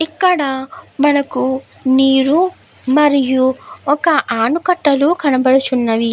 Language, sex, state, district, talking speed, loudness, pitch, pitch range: Telugu, female, Andhra Pradesh, Guntur, 70 wpm, -15 LUFS, 270 Hz, 260-295 Hz